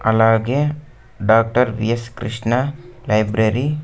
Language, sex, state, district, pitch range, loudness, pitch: Telugu, male, Andhra Pradesh, Sri Satya Sai, 110-130 Hz, -18 LUFS, 120 Hz